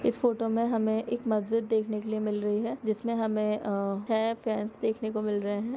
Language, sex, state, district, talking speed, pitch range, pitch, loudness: Hindi, female, Bihar, Sitamarhi, 135 wpm, 210-230 Hz, 220 Hz, -29 LUFS